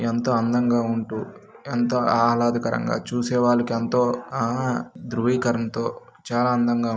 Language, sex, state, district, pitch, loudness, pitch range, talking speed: Telugu, male, Karnataka, Raichur, 120 Hz, -23 LUFS, 115-120 Hz, 95 wpm